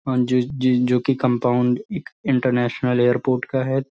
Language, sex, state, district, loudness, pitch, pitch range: Hindi, male, Bihar, Sitamarhi, -20 LUFS, 125 Hz, 125-135 Hz